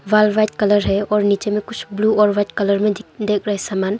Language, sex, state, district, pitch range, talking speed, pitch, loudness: Hindi, female, Arunachal Pradesh, Longding, 200-210 Hz, 240 wpm, 210 Hz, -18 LUFS